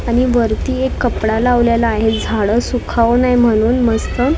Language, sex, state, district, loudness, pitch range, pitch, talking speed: Marathi, female, Maharashtra, Mumbai Suburban, -15 LUFS, 225-245 Hz, 235 Hz, 165 wpm